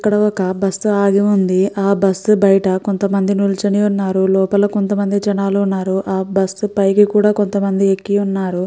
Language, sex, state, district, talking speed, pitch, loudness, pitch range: Telugu, female, Andhra Pradesh, Krishna, 160 wpm, 200 Hz, -15 LUFS, 190-205 Hz